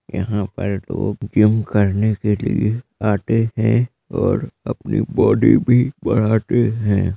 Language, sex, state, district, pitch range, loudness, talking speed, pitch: Hindi, male, Uttar Pradesh, Jalaun, 105-115 Hz, -18 LUFS, 125 wpm, 110 Hz